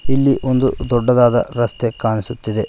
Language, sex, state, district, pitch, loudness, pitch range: Kannada, male, Karnataka, Koppal, 120 Hz, -17 LUFS, 115-130 Hz